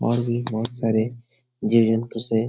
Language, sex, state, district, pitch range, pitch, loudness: Hindi, male, Bihar, Jahanabad, 115-120 Hz, 115 Hz, -22 LUFS